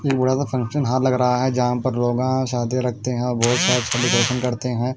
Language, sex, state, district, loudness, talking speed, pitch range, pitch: Hindi, male, Punjab, Kapurthala, -20 LUFS, 240 wpm, 120-130 Hz, 125 Hz